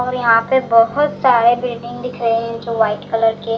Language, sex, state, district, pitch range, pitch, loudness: Hindi, female, Delhi, New Delhi, 225-250 Hz, 230 Hz, -16 LUFS